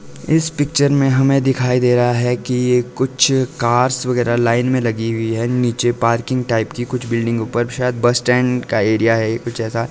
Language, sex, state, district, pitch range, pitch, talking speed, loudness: Hindi, male, Himachal Pradesh, Shimla, 115-125 Hz, 120 Hz, 200 wpm, -17 LUFS